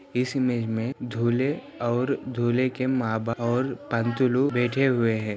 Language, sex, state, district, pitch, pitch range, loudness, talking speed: Hindi, male, Andhra Pradesh, Anantapur, 125 Hz, 115-130 Hz, -25 LUFS, 145 wpm